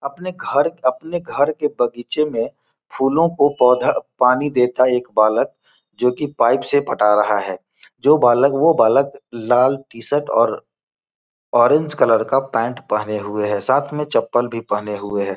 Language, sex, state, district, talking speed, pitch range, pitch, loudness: Hindi, male, Bihar, Gopalganj, 165 wpm, 115-145 Hz, 125 Hz, -18 LUFS